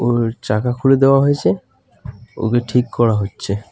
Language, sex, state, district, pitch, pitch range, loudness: Bengali, male, West Bengal, Alipurduar, 120 Hz, 105-125 Hz, -17 LUFS